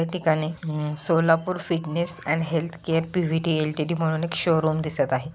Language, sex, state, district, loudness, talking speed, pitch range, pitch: Marathi, female, Maharashtra, Solapur, -24 LUFS, 200 wpm, 155-165 Hz, 165 Hz